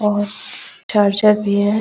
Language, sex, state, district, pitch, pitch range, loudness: Hindi, female, Bihar, Araria, 210 Hz, 205-210 Hz, -16 LUFS